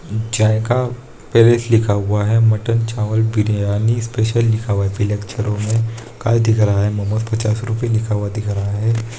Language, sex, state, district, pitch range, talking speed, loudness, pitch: Hindi, male, Bihar, Saharsa, 105-115 Hz, 165 wpm, -17 LUFS, 110 Hz